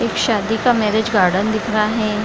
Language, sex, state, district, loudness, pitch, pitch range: Hindi, female, Bihar, Lakhisarai, -17 LUFS, 215 Hz, 210-220 Hz